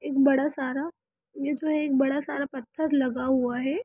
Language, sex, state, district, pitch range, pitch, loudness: Hindi, female, Bihar, Sitamarhi, 265-295 Hz, 280 Hz, -26 LUFS